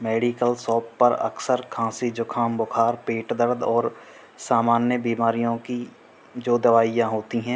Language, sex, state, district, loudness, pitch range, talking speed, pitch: Hindi, male, Uttar Pradesh, Hamirpur, -23 LUFS, 115-120 Hz, 135 wpm, 115 Hz